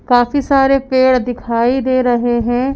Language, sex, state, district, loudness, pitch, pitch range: Hindi, female, Madhya Pradesh, Bhopal, -14 LUFS, 255 Hz, 240-265 Hz